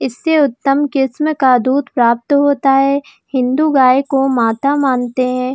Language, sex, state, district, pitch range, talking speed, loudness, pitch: Hindi, female, Jharkhand, Jamtara, 255-285 Hz, 150 wpm, -14 LUFS, 270 Hz